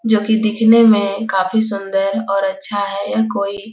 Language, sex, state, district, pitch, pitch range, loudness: Hindi, female, Bihar, Jahanabad, 205 Hz, 200-220 Hz, -16 LUFS